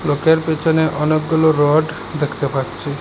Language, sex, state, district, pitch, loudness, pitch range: Bengali, male, Assam, Hailakandi, 155 Hz, -17 LUFS, 145-160 Hz